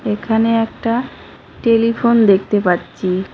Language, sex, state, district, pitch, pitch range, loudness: Bengali, female, West Bengal, Cooch Behar, 225 Hz, 205-230 Hz, -16 LUFS